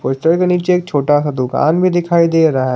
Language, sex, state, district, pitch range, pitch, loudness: Hindi, male, Jharkhand, Garhwa, 145-175 Hz, 165 Hz, -14 LUFS